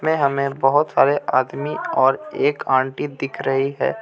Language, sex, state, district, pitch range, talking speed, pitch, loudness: Hindi, male, Jharkhand, Ranchi, 135-145 Hz, 165 wpm, 140 Hz, -20 LUFS